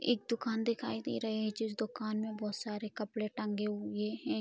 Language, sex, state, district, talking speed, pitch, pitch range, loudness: Hindi, female, Bihar, Vaishali, 205 wpm, 215 Hz, 210-220 Hz, -37 LUFS